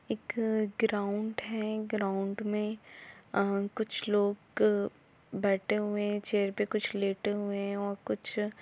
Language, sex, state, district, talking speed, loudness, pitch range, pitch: Hindi, female, Jharkhand, Jamtara, 130 wpm, -32 LUFS, 200-215 Hz, 210 Hz